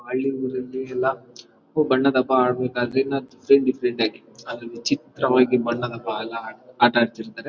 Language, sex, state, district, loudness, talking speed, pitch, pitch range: Kannada, male, Karnataka, Bellary, -22 LUFS, 120 wpm, 125 Hz, 120-130 Hz